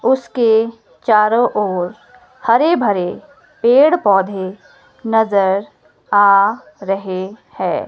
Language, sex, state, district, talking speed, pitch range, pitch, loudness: Hindi, female, Himachal Pradesh, Shimla, 85 wpm, 195-240 Hz, 210 Hz, -15 LUFS